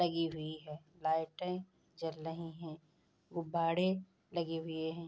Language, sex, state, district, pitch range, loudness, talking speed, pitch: Hindi, female, Bihar, Bhagalpur, 160-175 Hz, -39 LUFS, 130 wpm, 165 Hz